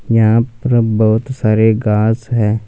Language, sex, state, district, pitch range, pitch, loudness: Hindi, male, Punjab, Fazilka, 110-115 Hz, 110 Hz, -14 LUFS